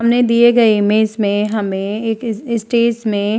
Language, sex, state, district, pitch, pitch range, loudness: Hindi, female, Uttar Pradesh, Hamirpur, 220 Hz, 210-235 Hz, -15 LUFS